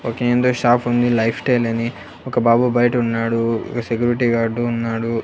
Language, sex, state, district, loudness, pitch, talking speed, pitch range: Telugu, male, Andhra Pradesh, Annamaya, -18 LUFS, 120 Hz, 160 wpm, 115-120 Hz